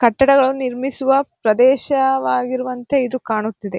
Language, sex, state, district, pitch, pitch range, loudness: Kannada, female, Karnataka, Gulbarga, 255 Hz, 235-270 Hz, -17 LUFS